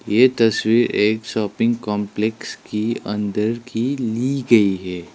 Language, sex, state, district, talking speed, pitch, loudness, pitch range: Hindi, male, Sikkim, Gangtok, 130 wpm, 110 Hz, -20 LUFS, 105-120 Hz